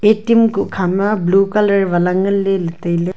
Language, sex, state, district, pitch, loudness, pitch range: Wancho, female, Arunachal Pradesh, Longding, 195 Hz, -15 LUFS, 180-205 Hz